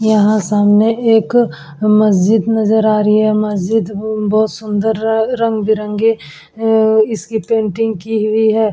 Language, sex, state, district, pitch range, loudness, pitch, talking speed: Hindi, female, Uttar Pradesh, Etah, 210-220 Hz, -14 LUFS, 215 Hz, 125 wpm